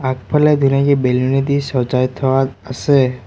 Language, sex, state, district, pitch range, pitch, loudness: Assamese, male, Assam, Sonitpur, 130-140 Hz, 135 Hz, -16 LUFS